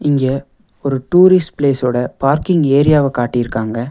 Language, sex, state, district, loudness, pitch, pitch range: Tamil, male, Tamil Nadu, Nilgiris, -14 LUFS, 135 Hz, 125-150 Hz